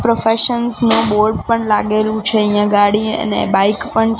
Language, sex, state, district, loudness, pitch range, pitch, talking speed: Gujarati, female, Gujarat, Gandhinagar, -14 LUFS, 210-225 Hz, 220 Hz, 155 wpm